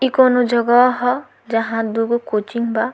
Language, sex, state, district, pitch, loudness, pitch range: Bhojpuri, female, Bihar, Muzaffarpur, 235 Hz, -17 LUFS, 225-250 Hz